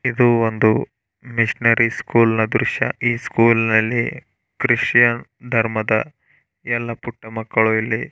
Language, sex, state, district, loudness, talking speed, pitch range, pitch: Kannada, male, Karnataka, Bellary, -18 LUFS, 120 wpm, 110-120 Hz, 115 Hz